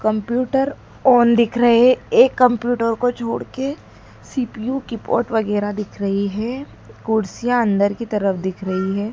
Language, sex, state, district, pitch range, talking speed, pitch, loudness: Hindi, female, Madhya Pradesh, Dhar, 210-250 Hz, 145 wpm, 230 Hz, -19 LUFS